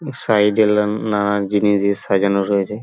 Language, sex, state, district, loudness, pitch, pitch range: Bengali, male, West Bengal, Paschim Medinipur, -17 LUFS, 105 Hz, 100-105 Hz